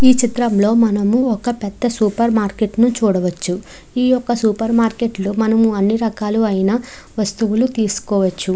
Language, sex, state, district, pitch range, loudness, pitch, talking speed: Telugu, female, Andhra Pradesh, Chittoor, 205-235 Hz, -17 LUFS, 220 Hz, 125 wpm